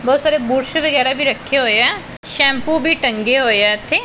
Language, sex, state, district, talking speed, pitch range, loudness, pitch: Punjabi, female, Punjab, Pathankot, 205 wpm, 250-305 Hz, -14 LUFS, 270 Hz